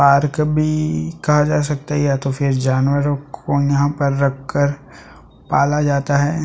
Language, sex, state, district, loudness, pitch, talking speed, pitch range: Hindi, male, Chhattisgarh, Sukma, -18 LUFS, 140 Hz, 175 wpm, 140-150 Hz